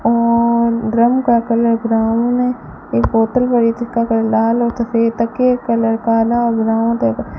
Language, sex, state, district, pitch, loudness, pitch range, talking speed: Hindi, female, Rajasthan, Bikaner, 230 Hz, -15 LUFS, 225-235 Hz, 185 wpm